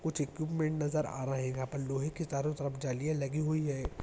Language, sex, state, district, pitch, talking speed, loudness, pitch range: Hindi, male, Rajasthan, Nagaur, 145 Hz, 225 wpm, -35 LUFS, 135-155 Hz